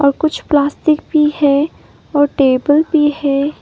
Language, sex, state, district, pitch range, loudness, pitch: Hindi, female, Arunachal Pradesh, Papum Pare, 280-300 Hz, -14 LUFS, 290 Hz